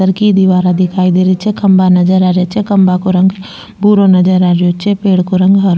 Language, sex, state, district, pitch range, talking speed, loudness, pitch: Rajasthani, female, Rajasthan, Nagaur, 180-195 Hz, 260 wpm, -10 LUFS, 185 Hz